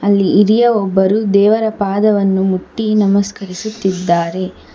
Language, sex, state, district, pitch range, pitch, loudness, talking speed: Kannada, female, Karnataka, Bangalore, 190-215 Hz, 200 Hz, -14 LUFS, 90 wpm